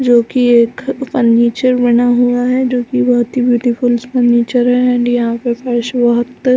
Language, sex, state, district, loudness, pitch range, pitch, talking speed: Hindi, female, Chhattisgarh, Balrampur, -13 LUFS, 240-250 Hz, 245 Hz, 165 wpm